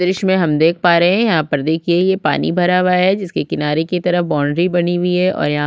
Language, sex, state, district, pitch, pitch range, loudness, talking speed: Hindi, female, Chhattisgarh, Sukma, 175 Hz, 160-180 Hz, -15 LUFS, 265 wpm